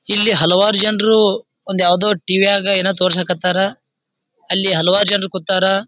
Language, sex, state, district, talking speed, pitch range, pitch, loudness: Kannada, male, Karnataka, Bijapur, 120 wpm, 185-205 Hz, 195 Hz, -13 LUFS